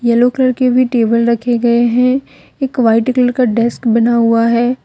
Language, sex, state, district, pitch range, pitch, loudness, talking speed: Hindi, female, Jharkhand, Deoghar, 235-250 Hz, 240 Hz, -13 LUFS, 200 wpm